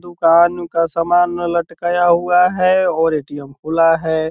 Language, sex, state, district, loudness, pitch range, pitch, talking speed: Hindi, male, Bihar, Purnia, -15 LUFS, 165-175 Hz, 170 Hz, 140 wpm